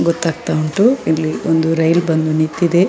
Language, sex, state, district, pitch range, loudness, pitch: Kannada, female, Karnataka, Dakshina Kannada, 160-170 Hz, -16 LUFS, 165 Hz